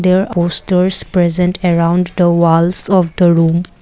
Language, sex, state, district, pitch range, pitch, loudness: English, female, Assam, Kamrup Metropolitan, 170-185 Hz, 175 Hz, -12 LUFS